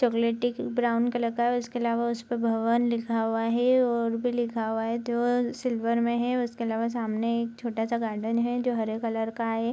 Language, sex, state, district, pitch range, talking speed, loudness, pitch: Hindi, female, Bihar, Araria, 230-240 Hz, 210 wpm, -27 LUFS, 235 Hz